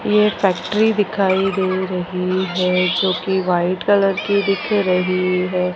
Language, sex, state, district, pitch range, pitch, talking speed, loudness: Hindi, female, Madhya Pradesh, Dhar, 180-195 Hz, 185 Hz, 135 wpm, -18 LUFS